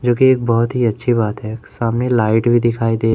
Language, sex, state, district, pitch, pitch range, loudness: Hindi, male, Madhya Pradesh, Umaria, 115 Hz, 115-120 Hz, -16 LUFS